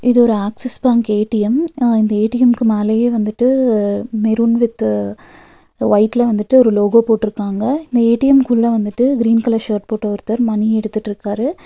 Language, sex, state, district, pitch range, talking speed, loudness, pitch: Tamil, female, Tamil Nadu, Nilgiris, 210-240 Hz, 145 wpm, -15 LUFS, 225 Hz